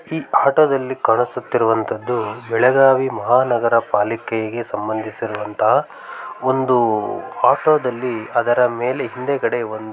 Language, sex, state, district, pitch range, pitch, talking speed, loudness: Kannada, male, Karnataka, Mysore, 110-130 Hz, 120 Hz, 85 wpm, -18 LUFS